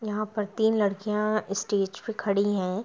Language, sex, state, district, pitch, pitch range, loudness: Hindi, female, Bihar, Gopalganj, 210 Hz, 200-215 Hz, -27 LUFS